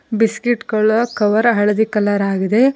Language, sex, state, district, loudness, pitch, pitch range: Kannada, female, Karnataka, Koppal, -16 LUFS, 220 Hz, 210-235 Hz